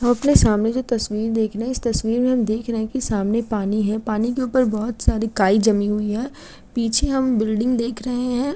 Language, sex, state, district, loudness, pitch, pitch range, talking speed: Hindi, female, Uttar Pradesh, Gorakhpur, -20 LUFS, 230 Hz, 215-250 Hz, 230 wpm